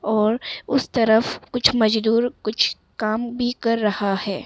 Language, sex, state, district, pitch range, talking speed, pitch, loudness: Hindi, female, Arunachal Pradesh, Longding, 215-240 Hz, 150 wpm, 220 Hz, -21 LUFS